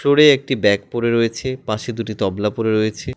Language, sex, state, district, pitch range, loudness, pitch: Bengali, male, West Bengal, Alipurduar, 110-130 Hz, -18 LUFS, 115 Hz